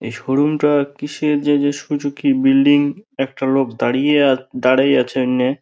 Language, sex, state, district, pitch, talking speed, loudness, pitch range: Bengali, male, West Bengal, Dakshin Dinajpur, 145 Hz, 160 wpm, -17 LUFS, 135-150 Hz